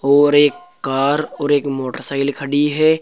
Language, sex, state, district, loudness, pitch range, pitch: Hindi, male, Uttar Pradesh, Saharanpur, -17 LUFS, 140-150 Hz, 145 Hz